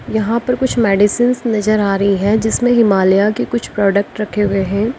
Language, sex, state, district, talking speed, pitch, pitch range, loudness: Hindi, female, Uttar Pradesh, Lalitpur, 195 wpm, 210 Hz, 200-235 Hz, -15 LUFS